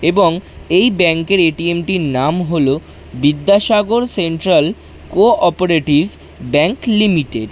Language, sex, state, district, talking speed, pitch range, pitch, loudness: Bengali, male, West Bengal, Jhargram, 110 wpm, 150-200 Hz, 170 Hz, -14 LUFS